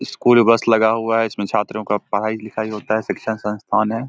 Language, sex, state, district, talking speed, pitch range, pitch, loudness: Hindi, male, Bihar, Samastipur, 220 wpm, 110-115 Hz, 110 Hz, -19 LUFS